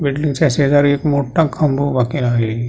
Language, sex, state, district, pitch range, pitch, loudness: Marathi, male, Maharashtra, Pune, 130-150 Hz, 140 Hz, -16 LUFS